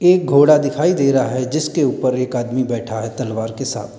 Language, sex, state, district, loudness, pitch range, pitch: Hindi, male, Uttar Pradesh, Lalitpur, -17 LUFS, 120-150 Hz, 130 Hz